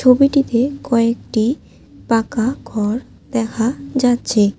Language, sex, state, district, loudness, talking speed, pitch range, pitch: Bengali, female, West Bengal, Alipurduar, -18 LUFS, 80 wpm, 225-265 Hz, 240 Hz